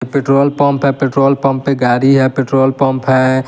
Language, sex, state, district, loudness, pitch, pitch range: Hindi, male, Bihar, West Champaran, -12 LUFS, 135 Hz, 130-140 Hz